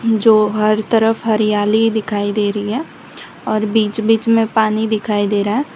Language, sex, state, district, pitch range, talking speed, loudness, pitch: Hindi, female, Gujarat, Valsad, 210-225 Hz, 175 wpm, -16 LUFS, 215 Hz